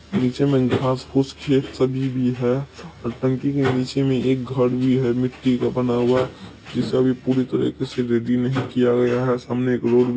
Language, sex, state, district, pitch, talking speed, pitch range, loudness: Maithili, male, Bihar, Supaul, 125 Hz, 205 wpm, 125-130 Hz, -21 LUFS